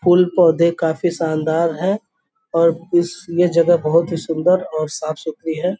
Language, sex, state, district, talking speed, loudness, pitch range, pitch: Hindi, male, Uttar Pradesh, Gorakhpur, 145 wpm, -18 LUFS, 160-180 Hz, 170 Hz